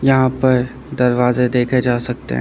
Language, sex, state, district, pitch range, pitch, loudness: Hindi, male, Uttar Pradesh, Lucknow, 125-130 Hz, 125 Hz, -17 LUFS